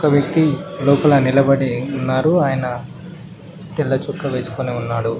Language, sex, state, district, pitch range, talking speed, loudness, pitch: Telugu, male, Telangana, Mahabubabad, 130-155 Hz, 90 wpm, -18 LUFS, 140 Hz